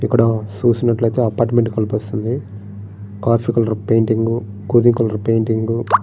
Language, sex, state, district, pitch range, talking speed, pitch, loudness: Telugu, male, Andhra Pradesh, Srikakulam, 105-115 Hz, 110 wpm, 115 Hz, -17 LUFS